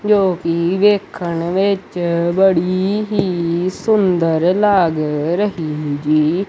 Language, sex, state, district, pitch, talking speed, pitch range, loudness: Punjabi, male, Punjab, Kapurthala, 180 Hz, 90 wpm, 165-195 Hz, -16 LUFS